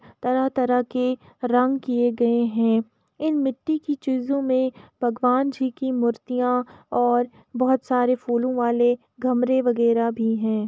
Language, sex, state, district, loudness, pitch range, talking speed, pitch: Hindi, female, Uttar Pradesh, Etah, -23 LUFS, 240-260 Hz, 135 wpm, 250 Hz